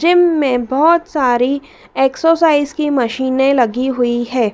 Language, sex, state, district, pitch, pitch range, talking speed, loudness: Hindi, female, Madhya Pradesh, Dhar, 270 Hz, 250-310 Hz, 130 wpm, -14 LUFS